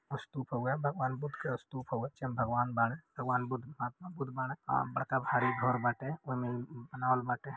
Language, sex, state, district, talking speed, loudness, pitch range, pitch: Hindi, male, Uttar Pradesh, Deoria, 180 wpm, -35 LUFS, 120-135 Hz, 130 Hz